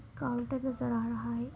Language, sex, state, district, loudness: Hindi, female, Uttar Pradesh, Deoria, -34 LUFS